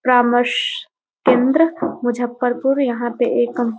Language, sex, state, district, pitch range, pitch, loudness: Hindi, female, Bihar, Muzaffarpur, 240-285 Hz, 245 Hz, -18 LUFS